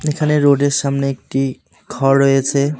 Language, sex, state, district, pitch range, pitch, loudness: Bengali, male, West Bengal, Cooch Behar, 135-145 Hz, 140 Hz, -16 LUFS